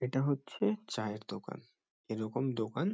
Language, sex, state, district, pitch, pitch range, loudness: Bengali, male, West Bengal, Kolkata, 125 Hz, 110-145 Hz, -36 LUFS